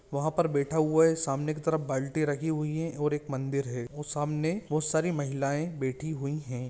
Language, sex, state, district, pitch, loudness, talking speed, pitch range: Hindi, male, Jharkhand, Jamtara, 150 Hz, -30 LUFS, 215 wpm, 140-155 Hz